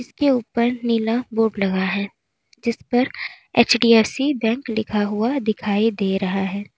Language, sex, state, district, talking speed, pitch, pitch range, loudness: Hindi, female, Uttar Pradesh, Lalitpur, 140 wpm, 225 Hz, 205-240 Hz, -20 LUFS